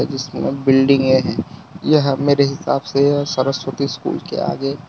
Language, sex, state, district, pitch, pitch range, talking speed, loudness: Hindi, male, Gujarat, Valsad, 140 Hz, 135-145 Hz, 160 wpm, -18 LUFS